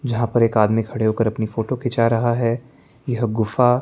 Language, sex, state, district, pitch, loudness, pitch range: Hindi, male, Chandigarh, Chandigarh, 115 Hz, -20 LUFS, 110-120 Hz